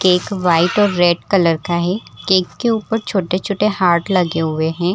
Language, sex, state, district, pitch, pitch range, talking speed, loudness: Hindi, female, Chhattisgarh, Rajnandgaon, 185 Hz, 170-200 Hz, 180 wpm, -16 LUFS